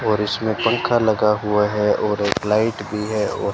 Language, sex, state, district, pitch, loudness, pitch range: Hindi, male, Rajasthan, Bikaner, 105 Hz, -19 LUFS, 105-110 Hz